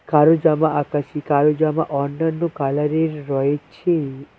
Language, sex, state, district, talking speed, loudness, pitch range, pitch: Bengali, male, West Bengal, Cooch Behar, 125 wpm, -19 LUFS, 145-160 Hz, 150 Hz